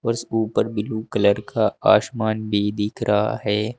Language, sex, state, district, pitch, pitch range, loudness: Hindi, male, Uttar Pradesh, Saharanpur, 110 Hz, 105-115 Hz, -21 LUFS